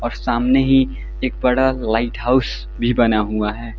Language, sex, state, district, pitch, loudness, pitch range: Hindi, male, Uttar Pradesh, Lalitpur, 120 Hz, -18 LUFS, 115-130 Hz